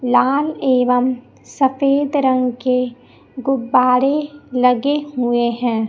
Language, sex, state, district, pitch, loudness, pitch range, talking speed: Hindi, male, Chhattisgarh, Raipur, 255 Hz, -17 LUFS, 250-275 Hz, 90 wpm